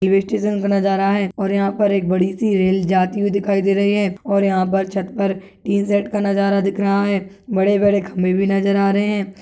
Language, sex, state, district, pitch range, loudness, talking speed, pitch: Hindi, female, Rajasthan, Churu, 195-200 Hz, -18 LUFS, 240 wpm, 195 Hz